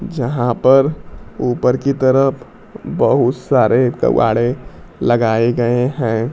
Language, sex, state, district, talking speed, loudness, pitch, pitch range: Hindi, male, Bihar, Kaimur, 95 wpm, -15 LUFS, 125 Hz, 120-135 Hz